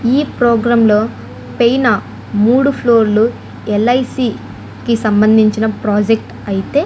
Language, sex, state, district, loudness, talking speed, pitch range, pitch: Telugu, female, Andhra Pradesh, Annamaya, -13 LUFS, 115 wpm, 215-245 Hz, 230 Hz